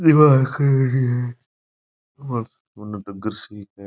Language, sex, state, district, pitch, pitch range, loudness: Marwari, male, Rajasthan, Nagaur, 120 Hz, 100-130 Hz, -19 LUFS